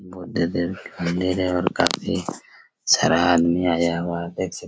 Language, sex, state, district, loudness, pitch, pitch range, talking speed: Hindi, male, Bihar, Araria, -22 LUFS, 85 Hz, 85-90 Hz, 180 wpm